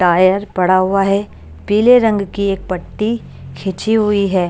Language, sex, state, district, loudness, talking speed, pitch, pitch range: Hindi, female, Chhattisgarh, Raipur, -15 LUFS, 160 wpm, 195 Hz, 180-210 Hz